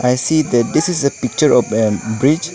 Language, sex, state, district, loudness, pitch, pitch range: English, male, Arunachal Pradesh, Lower Dibang Valley, -15 LUFS, 135 Hz, 120-155 Hz